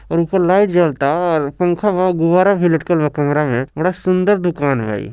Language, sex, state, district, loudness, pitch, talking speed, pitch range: Bhojpuri, male, Bihar, Gopalganj, -16 LUFS, 175 Hz, 200 wpm, 150-185 Hz